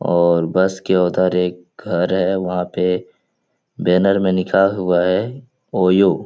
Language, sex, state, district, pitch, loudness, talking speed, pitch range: Hindi, male, Uttar Pradesh, Etah, 90 Hz, -17 LUFS, 155 wpm, 90-95 Hz